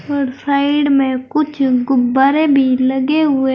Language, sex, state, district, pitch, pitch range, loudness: Hindi, female, Uttar Pradesh, Saharanpur, 275 Hz, 265-290 Hz, -14 LUFS